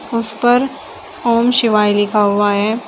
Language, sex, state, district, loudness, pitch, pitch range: Hindi, female, Uttar Pradesh, Shamli, -14 LUFS, 230 Hz, 205-245 Hz